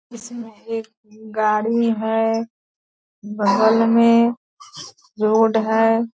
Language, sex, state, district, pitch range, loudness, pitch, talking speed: Hindi, female, Bihar, Purnia, 220-230 Hz, -18 LUFS, 225 Hz, 80 wpm